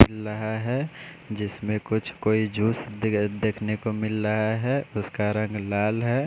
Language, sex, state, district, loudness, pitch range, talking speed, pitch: Hindi, male, Odisha, Khordha, -26 LUFS, 105-115 Hz, 145 wpm, 110 Hz